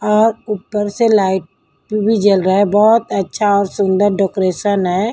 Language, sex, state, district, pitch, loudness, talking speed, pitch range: Hindi, female, Delhi, New Delhi, 205 Hz, -15 LUFS, 165 wpm, 195-215 Hz